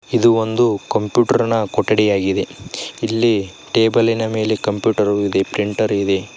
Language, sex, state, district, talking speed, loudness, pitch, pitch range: Kannada, male, Karnataka, Koppal, 105 wpm, -17 LUFS, 110 Hz, 100-115 Hz